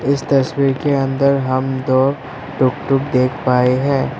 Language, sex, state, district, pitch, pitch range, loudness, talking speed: Hindi, male, Assam, Sonitpur, 135 Hz, 130-140 Hz, -16 LUFS, 145 wpm